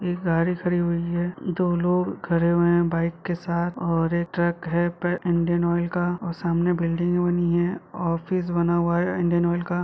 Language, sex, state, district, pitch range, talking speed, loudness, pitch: Hindi, male, Jharkhand, Sahebganj, 170-175 Hz, 200 wpm, -24 LUFS, 175 Hz